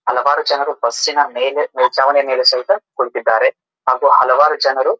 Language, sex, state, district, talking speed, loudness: Kannada, male, Karnataka, Dharwad, 155 wpm, -15 LUFS